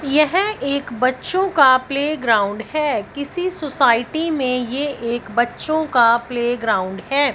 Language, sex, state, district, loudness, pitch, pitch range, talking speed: Hindi, female, Punjab, Fazilka, -19 LUFS, 275 Hz, 240-305 Hz, 120 wpm